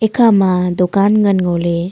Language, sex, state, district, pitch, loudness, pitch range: Wancho, female, Arunachal Pradesh, Longding, 185 Hz, -13 LUFS, 180-205 Hz